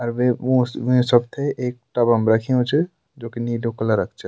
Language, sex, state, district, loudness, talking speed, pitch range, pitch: Garhwali, male, Uttarakhand, Tehri Garhwal, -20 LUFS, 210 wpm, 115-130 Hz, 125 Hz